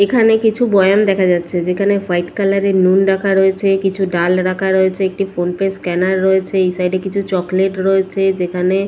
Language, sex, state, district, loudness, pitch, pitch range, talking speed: Bengali, female, West Bengal, Purulia, -15 LUFS, 190 Hz, 185-195 Hz, 195 wpm